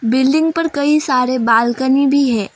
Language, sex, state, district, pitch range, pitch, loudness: Hindi, female, Assam, Kamrup Metropolitan, 240-285 Hz, 265 Hz, -14 LUFS